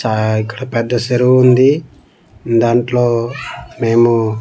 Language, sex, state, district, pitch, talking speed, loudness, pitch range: Telugu, male, Andhra Pradesh, Manyam, 120 Hz, 95 wpm, -14 LUFS, 115-125 Hz